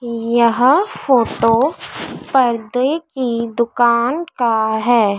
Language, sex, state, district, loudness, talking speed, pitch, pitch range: Hindi, female, Madhya Pradesh, Dhar, -16 LUFS, 80 wpm, 235 Hz, 230-260 Hz